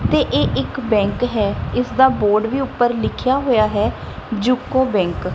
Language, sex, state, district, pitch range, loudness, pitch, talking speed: Punjabi, female, Punjab, Kapurthala, 215-255 Hz, -18 LUFS, 240 Hz, 180 wpm